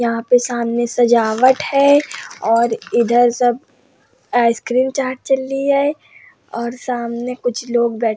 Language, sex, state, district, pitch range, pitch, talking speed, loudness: Hindi, female, Uttar Pradesh, Hamirpur, 235-260 Hz, 240 Hz, 140 wpm, -16 LUFS